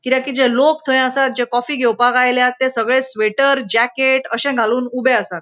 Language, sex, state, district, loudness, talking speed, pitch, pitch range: Konkani, female, Goa, North and South Goa, -16 LUFS, 190 wpm, 255 Hz, 240-265 Hz